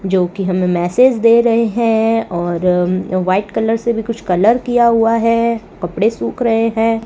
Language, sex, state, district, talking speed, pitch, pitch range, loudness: Hindi, female, Rajasthan, Bikaner, 180 wpm, 225 Hz, 185-230 Hz, -15 LUFS